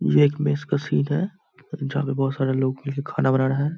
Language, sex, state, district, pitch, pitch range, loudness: Hindi, male, Bihar, Araria, 140 Hz, 135-145 Hz, -23 LUFS